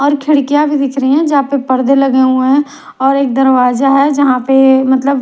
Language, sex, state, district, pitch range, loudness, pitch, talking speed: Hindi, female, Odisha, Nuapada, 265-285 Hz, -11 LUFS, 275 Hz, 220 wpm